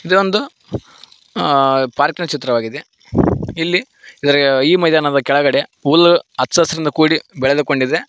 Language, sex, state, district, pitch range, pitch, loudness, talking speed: Kannada, male, Karnataka, Koppal, 140-170 Hz, 150 Hz, -15 LUFS, 120 wpm